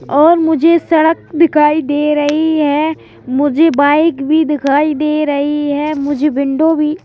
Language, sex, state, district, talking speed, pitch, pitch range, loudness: Hindi, male, Madhya Pradesh, Bhopal, 145 wpm, 300 Hz, 290-315 Hz, -13 LUFS